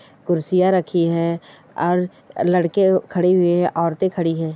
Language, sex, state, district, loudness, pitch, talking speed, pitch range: Hindi, female, Goa, North and South Goa, -19 LUFS, 175 Hz, 145 wpm, 170-180 Hz